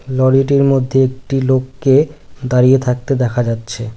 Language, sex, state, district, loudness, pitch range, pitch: Bengali, male, West Bengal, Cooch Behar, -14 LUFS, 125-135 Hz, 130 Hz